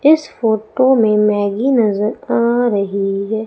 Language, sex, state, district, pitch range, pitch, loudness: Hindi, female, Madhya Pradesh, Umaria, 205-245 Hz, 220 Hz, -15 LUFS